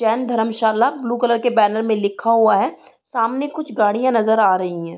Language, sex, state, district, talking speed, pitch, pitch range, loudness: Hindi, female, Uttar Pradesh, Gorakhpur, 205 wpm, 225 Hz, 215-240 Hz, -18 LUFS